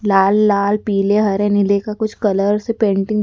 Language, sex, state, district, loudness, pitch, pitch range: Hindi, female, Madhya Pradesh, Dhar, -16 LUFS, 205 Hz, 200-210 Hz